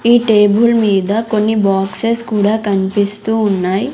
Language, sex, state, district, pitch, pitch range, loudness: Telugu, female, Andhra Pradesh, Sri Satya Sai, 210 Hz, 200-225 Hz, -13 LUFS